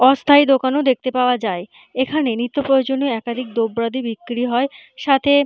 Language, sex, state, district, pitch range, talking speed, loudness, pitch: Bengali, female, West Bengal, Malda, 235-275 Hz, 155 wpm, -18 LUFS, 255 Hz